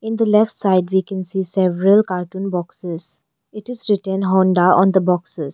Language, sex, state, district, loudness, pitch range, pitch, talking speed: English, female, Arunachal Pradesh, Longding, -17 LUFS, 180-195 Hz, 190 Hz, 185 wpm